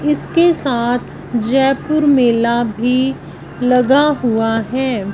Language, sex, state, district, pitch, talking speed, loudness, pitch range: Hindi, female, Punjab, Fazilka, 250 Hz, 95 wpm, -15 LUFS, 235-275 Hz